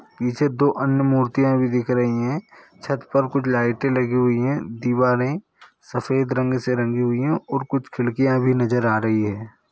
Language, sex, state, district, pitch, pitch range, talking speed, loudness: Hindi, male, Bihar, Saran, 130 Hz, 120-135 Hz, 185 wpm, -21 LUFS